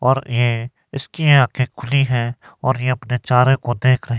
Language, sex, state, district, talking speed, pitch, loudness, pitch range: Hindi, male, Himachal Pradesh, Shimla, 185 wpm, 125 Hz, -18 LUFS, 120-135 Hz